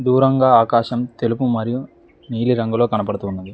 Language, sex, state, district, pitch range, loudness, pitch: Telugu, male, Telangana, Mahabubabad, 115-125 Hz, -18 LUFS, 120 Hz